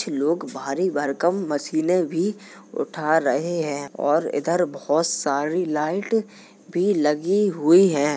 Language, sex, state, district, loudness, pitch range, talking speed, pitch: Hindi, male, Uttar Pradesh, Jalaun, -22 LUFS, 145-180 Hz, 125 wpm, 160 Hz